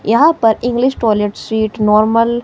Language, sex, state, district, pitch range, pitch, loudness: Hindi, female, Himachal Pradesh, Shimla, 215-240 Hz, 225 Hz, -13 LUFS